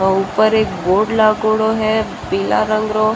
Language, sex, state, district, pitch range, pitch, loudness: Marwari, female, Rajasthan, Churu, 195-220 Hz, 215 Hz, -16 LUFS